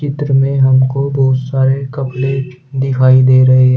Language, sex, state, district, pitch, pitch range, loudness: Hindi, male, Uttar Pradesh, Shamli, 130 Hz, 130-135 Hz, -12 LUFS